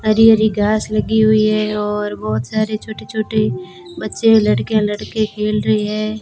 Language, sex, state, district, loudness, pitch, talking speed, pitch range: Hindi, female, Rajasthan, Bikaner, -16 LUFS, 215 Hz, 165 wpm, 210-215 Hz